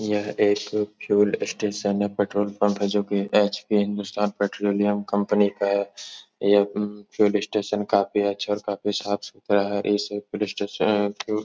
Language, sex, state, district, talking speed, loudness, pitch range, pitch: Hindi, male, Uttar Pradesh, Etah, 170 wpm, -24 LUFS, 100-105 Hz, 105 Hz